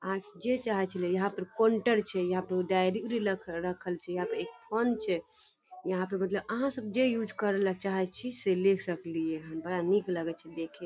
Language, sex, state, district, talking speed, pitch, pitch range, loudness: Hindi, female, Bihar, Darbhanga, 230 wpm, 190 Hz, 180-225 Hz, -32 LUFS